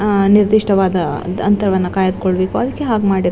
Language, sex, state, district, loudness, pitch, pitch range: Kannada, female, Karnataka, Dakshina Kannada, -15 LUFS, 195 Hz, 185-210 Hz